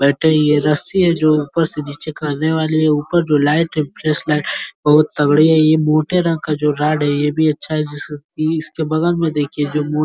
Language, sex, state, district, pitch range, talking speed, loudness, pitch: Hindi, male, Uttar Pradesh, Ghazipur, 150-160 Hz, 205 wpm, -16 LUFS, 155 Hz